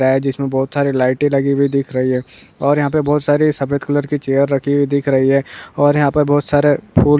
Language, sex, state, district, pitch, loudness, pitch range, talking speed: Hindi, male, West Bengal, Purulia, 140 Hz, -16 LUFS, 135-145 Hz, 250 wpm